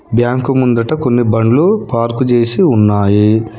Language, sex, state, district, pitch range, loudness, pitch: Telugu, male, Telangana, Hyderabad, 110-125 Hz, -12 LUFS, 115 Hz